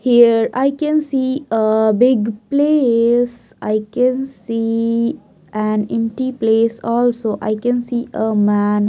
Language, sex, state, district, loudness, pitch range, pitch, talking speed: English, female, Maharashtra, Mumbai Suburban, -17 LUFS, 220-250 Hz, 230 Hz, 130 wpm